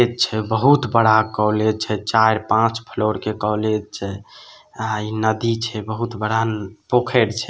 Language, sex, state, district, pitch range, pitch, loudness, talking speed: Maithili, male, Bihar, Samastipur, 105-115 Hz, 110 Hz, -19 LUFS, 135 wpm